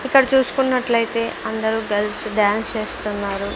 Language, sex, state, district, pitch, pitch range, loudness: Telugu, female, Andhra Pradesh, Sri Satya Sai, 220 Hz, 210-250 Hz, -20 LUFS